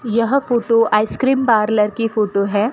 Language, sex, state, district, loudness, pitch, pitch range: Hindi, female, Rajasthan, Bikaner, -16 LUFS, 225 Hz, 210-235 Hz